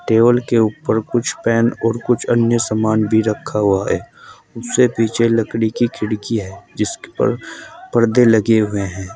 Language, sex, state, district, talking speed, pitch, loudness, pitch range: Hindi, male, Uttar Pradesh, Saharanpur, 165 wpm, 115 Hz, -17 LUFS, 110-120 Hz